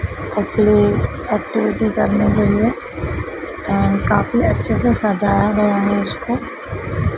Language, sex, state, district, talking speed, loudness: Hindi, female, Madhya Pradesh, Dhar, 110 wpm, -17 LUFS